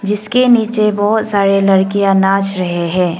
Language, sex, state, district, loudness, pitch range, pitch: Hindi, female, Arunachal Pradesh, Longding, -13 LUFS, 190-210 Hz, 195 Hz